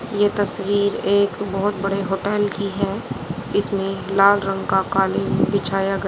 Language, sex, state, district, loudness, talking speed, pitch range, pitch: Hindi, female, Haryana, Jhajjar, -20 LUFS, 150 wpm, 195-205 Hz, 200 Hz